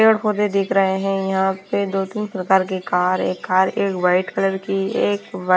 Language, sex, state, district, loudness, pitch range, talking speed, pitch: Hindi, female, Himachal Pradesh, Shimla, -20 LUFS, 185-195 Hz, 185 wpm, 195 Hz